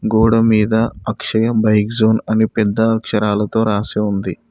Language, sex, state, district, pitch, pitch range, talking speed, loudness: Telugu, male, Telangana, Mahabubabad, 110 Hz, 105-110 Hz, 135 wpm, -16 LUFS